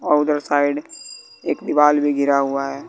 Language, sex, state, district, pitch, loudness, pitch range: Hindi, male, Bihar, West Champaran, 145 Hz, -19 LUFS, 140-150 Hz